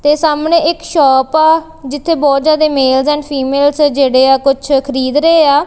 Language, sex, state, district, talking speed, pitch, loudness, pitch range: Punjabi, female, Punjab, Kapurthala, 170 wpm, 290 Hz, -11 LUFS, 275-315 Hz